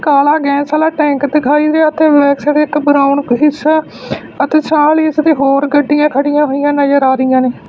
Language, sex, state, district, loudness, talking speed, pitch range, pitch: Punjabi, male, Punjab, Fazilka, -11 LUFS, 185 wpm, 280-305 Hz, 290 Hz